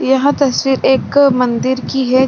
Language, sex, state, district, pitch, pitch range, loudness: Hindi, female, Bihar, Saran, 265 Hz, 255-275 Hz, -13 LUFS